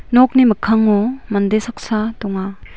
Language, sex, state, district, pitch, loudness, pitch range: Garo, female, Meghalaya, West Garo Hills, 220 Hz, -16 LUFS, 205-240 Hz